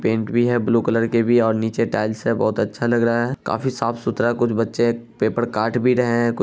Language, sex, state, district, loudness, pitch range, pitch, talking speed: Hindi, male, Bihar, Araria, -20 LUFS, 115-120 Hz, 115 Hz, 260 wpm